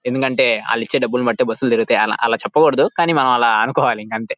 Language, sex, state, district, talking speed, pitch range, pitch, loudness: Telugu, male, Andhra Pradesh, Guntur, 205 wpm, 120-150 Hz, 125 Hz, -16 LUFS